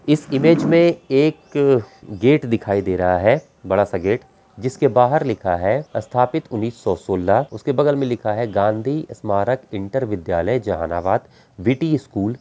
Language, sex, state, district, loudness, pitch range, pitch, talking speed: Hindi, male, Bihar, Gaya, -19 LUFS, 100-145 Hz, 125 Hz, 155 wpm